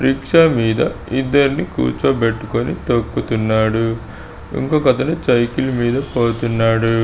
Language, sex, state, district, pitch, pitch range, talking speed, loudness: Telugu, male, Andhra Pradesh, Srikakulam, 120 Hz, 115-135 Hz, 75 wpm, -17 LUFS